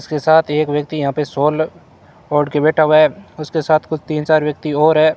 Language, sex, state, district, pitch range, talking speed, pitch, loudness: Hindi, male, Rajasthan, Bikaner, 150-155 Hz, 230 wpm, 155 Hz, -16 LUFS